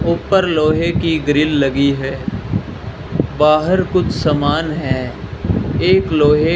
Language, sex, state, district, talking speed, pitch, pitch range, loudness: Hindi, male, Rajasthan, Bikaner, 120 wpm, 155 Hz, 135-165 Hz, -16 LUFS